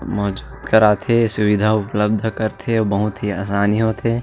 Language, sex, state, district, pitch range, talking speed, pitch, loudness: Chhattisgarhi, male, Chhattisgarh, Sarguja, 105-110 Hz, 140 wpm, 105 Hz, -18 LUFS